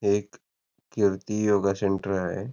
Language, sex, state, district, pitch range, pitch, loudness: Marathi, male, Karnataka, Belgaum, 95-105 Hz, 100 Hz, -26 LUFS